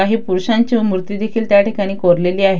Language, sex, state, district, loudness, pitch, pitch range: Marathi, female, Maharashtra, Dhule, -15 LUFS, 200 Hz, 190-225 Hz